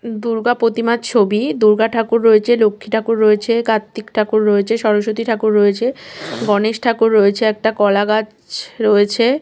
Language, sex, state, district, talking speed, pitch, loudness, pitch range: Bengali, female, West Bengal, Kolkata, 140 wpm, 220 Hz, -15 LUFS, 210-230 Hz